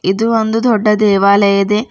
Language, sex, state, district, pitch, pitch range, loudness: Kannada, female, Karnataka, Bidar, 210 Hz, 200-225 Hz, -12 LUFS